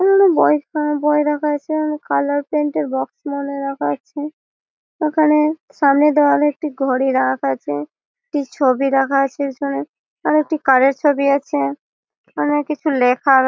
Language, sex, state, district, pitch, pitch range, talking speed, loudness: Bengali, female, West Bengal, Malda, 285 Hz, 265-300 Hz, 145 wpm, -18 LUFS